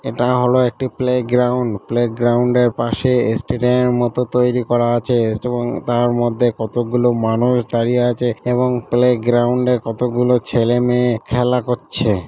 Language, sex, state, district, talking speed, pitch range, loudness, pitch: Bengali, male, West Bengal, Malda, 150 wpm, 120-125 Hz, -17 LUFS, 120 Hz